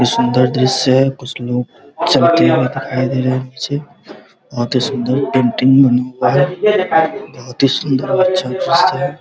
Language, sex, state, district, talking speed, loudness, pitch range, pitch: Hindi, male, Bihar, Araria, 170 wpm, -15 LUFS, 125-160 Hz, 130 Hz